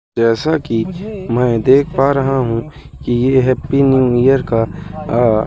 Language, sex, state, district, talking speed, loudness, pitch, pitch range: Hindi, male, Madhya Pradesh, Katni, 155 wpm, -15 LUFS, 130 Hz, 120-140 Hz